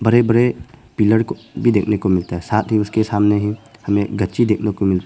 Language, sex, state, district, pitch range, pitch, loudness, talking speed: Hindi, male, Arunachal Pradesh, Papum Pare, 100-115 Hz, 105 Hz, -18 LUFS, 225 wpm